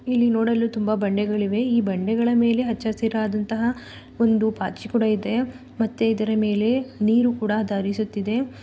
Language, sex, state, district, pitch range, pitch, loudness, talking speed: Kannada, female, Karnataka, Belgaum, 210-235 Hz, 220 Hz, -22 LUFS, 130 wpm